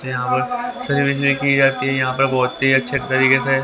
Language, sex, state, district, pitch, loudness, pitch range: Hindi, male, Haryana, Rohtak, 135 Hz, -17 LUFS, 130-140 Hz